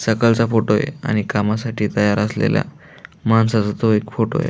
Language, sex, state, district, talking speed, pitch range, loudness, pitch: Marathi, male, Maharashtra, Aurangabad, 160 wpm, 105-115 Hz, -18 LUFS, 110 Hz